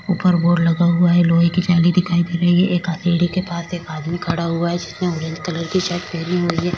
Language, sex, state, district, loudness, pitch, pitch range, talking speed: Hindi, female, Maharashtra, Chandrapur, -18 LUFS, 175 Hz, 170-175 Hz, 255 wpm